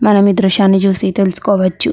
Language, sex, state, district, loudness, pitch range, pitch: Telugu, female, Andhra Pradesh, Chittoor, -12 LUFS, 190-200 Hz, 195 Hz